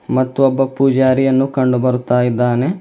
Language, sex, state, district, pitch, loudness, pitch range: Kannada, male, Karnataka, Bidar, 130 Hz, -15 LUFS, 125-135 Hz